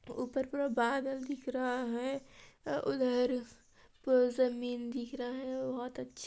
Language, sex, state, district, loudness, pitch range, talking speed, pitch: Hindi, female, Chhattisgarh, Balrampur, -35 LUFS, 245-260 Hz, 145 wpm, 255 Hz